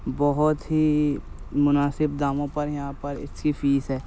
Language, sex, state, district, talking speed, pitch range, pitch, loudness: Hindi, male, Uttar Pradesh, Jyotiba Phule Nagar, 145 wpm, 140-150 Hz, 145 Hz, -24 LUFS